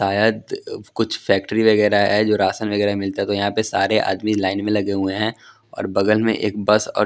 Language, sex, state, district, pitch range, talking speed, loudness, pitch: Hindi, male, Punjab, Kapurthala, 100-110 Hz, 210 wpm, -19 LUFS, 105 Hz